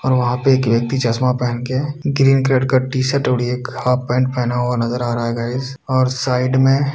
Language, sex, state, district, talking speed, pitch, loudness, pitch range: Hindi, male, Uttar Pradesh, Budaun, 240 wpm, 130 Hz, -17 LUFS, 125-130 Hz